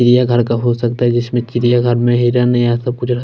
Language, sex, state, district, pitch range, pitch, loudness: Hindi, male, Chhattisgarh, Raipur, 120-125 Hz, 120 Hz, -14 LUFS